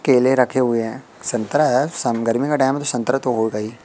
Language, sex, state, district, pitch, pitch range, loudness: Hindi, male, Madhya Pradesh, Katni, 125 Hz, 115-135 Hz, -19 LUFS